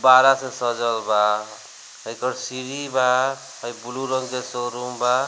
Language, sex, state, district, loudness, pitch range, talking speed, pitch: Bhojpuri, male, Bihar, Gopalganj, -22 LUFS, 120-130 Hz, 150 wpm, 125 Hz